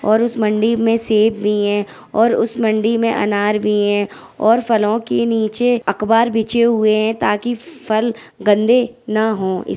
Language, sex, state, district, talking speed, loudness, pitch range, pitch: Hindi, female, Uttar Pradesh, Etah, 195 wpm, -16 LUFS, 210-230 Hz, 220 Hz